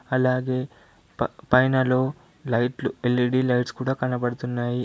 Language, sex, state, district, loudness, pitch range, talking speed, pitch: Telugu, male, Telangana, Adilabad, -24 LUFS, 125-130 Hz, 100 wpm, 130 Hz